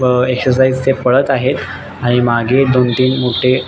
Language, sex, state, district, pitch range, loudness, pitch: Marathi, male, Maharashtra, Nagpur, 125-130 Hz, -13 LUFS, 125 Hz